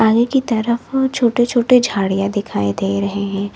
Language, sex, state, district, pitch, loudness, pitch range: Hindi, female, Uttar Pradesh, Lalitpur, 220 Hz, -17 LUFS, 200-240 Hz